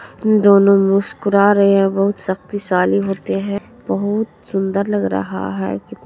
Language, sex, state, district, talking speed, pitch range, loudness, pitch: Maithili, female, Bihar, Supaul, 140 wpm, 190-200 Hz, -16 LUFS, 195 Hz